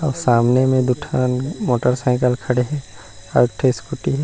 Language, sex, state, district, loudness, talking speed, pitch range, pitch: Chhattisgarhi, male, Chhattisgarh, Rajnandgaon, -19 LUFS, 185 wpm, 125-140 Hz, 125 Hz